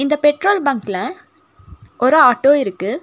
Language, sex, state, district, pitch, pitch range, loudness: Tamil, female, Tamil Nadu, Nilgiris, 295 Hz, 275-370 Hz, -15 LUFS